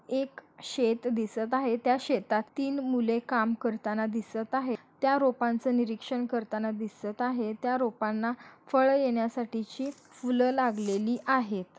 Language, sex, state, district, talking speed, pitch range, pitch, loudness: Hindi, female, Maharashtra, Solapur, 125 wpm, 225-255 Hz, 240 Hz, -30 LUFS